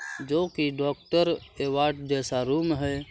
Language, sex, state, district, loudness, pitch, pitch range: Hindi, male, Uttar Pradesh, Varanasi, -27 LUFS, 145 Hz, 140-160 Hz